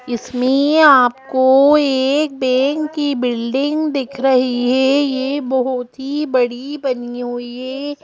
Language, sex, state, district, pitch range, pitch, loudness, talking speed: Hindi, female, Madhya Pradesh, Bhopal, 250-285 Hz, 265 Hz, -16 LUFS, 120 wpm